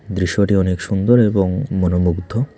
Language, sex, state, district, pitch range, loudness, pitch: Bengali, male, Tripura, Unakoti, 90-105 Hz, -17 LUFS, 95 Hz